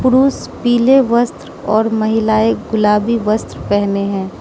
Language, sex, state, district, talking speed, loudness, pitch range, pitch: Hindi, female, Mizoram, Aizawl, 120 wpm, -15 LUFS, 210-240 Hz, 220 Hz